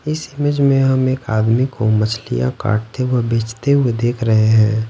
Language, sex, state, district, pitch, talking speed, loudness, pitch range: Hindi, male, Bihar, West Champaran, 120 Hz, 185 wpm, -16 LUFS, 110-135 Hz